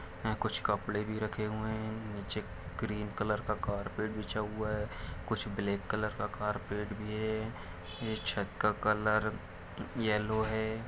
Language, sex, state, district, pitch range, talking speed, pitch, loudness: Hindi, male, Jharkhand, Jamtara, 100-110 Hz, 150 wpm, 105 Hz, -35 LUFS